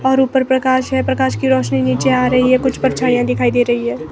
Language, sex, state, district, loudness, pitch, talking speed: Hindi, female, Himachal Pradesh, Shimla, -15 LUFS, 245 Hz, 250 wpm